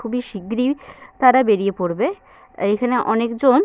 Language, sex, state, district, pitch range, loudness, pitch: Bengali, female, West Bengal, Purulia, 215-260 Hz, -19 LUFS, 245 Hz